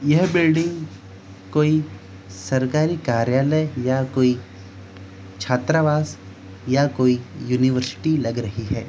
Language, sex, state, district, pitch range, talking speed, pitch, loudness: Hindi, male, Jharkhand, Jamtara, 95-150 Hz, 95 wpm, 125 Hz, -21 LUFS